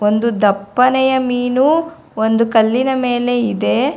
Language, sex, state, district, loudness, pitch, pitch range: Kannada, female, Karnataka, Bangalore, -15 LUFS, 245 Hz, 220-260 Hz